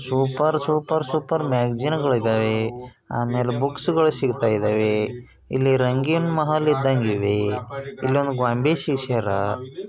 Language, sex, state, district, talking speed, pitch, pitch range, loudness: Kannada, male, Karnataka, Bijapur, 105 wpm, 130 Hz, 120-150 Hz, -22 LUFS